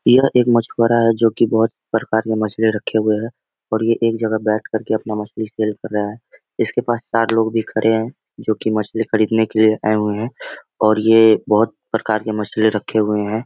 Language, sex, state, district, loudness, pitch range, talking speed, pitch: Hindi, male, Bihar, Muzaffarpur, -18 LUFS, 110-115 Hz, 225 wpm, 110 Hz